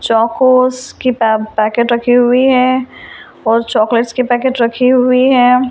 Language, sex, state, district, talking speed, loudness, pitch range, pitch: Hindi, female, Delhi, New Delhi, 170 wpm, -12 LUFS, 230-255 Hz, 250 Hz